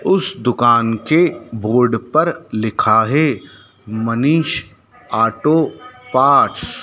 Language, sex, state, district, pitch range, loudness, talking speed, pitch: Hindi, male, Madhya Pradesh, Dhar, 115-160 Hz, -16 LUFS, 95 wpm, 125 Hz